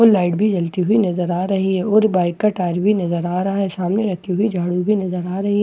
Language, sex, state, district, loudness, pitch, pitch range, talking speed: Hindi, female, Bihar, Katihar, -18 LUFS, 190 Hz, 180-205 Hz, 285 wpm